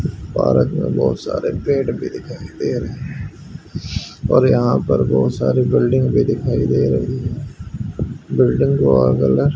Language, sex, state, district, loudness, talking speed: Hindi, male, Haryana, Rohtak, -17 LUFS, 165 wpm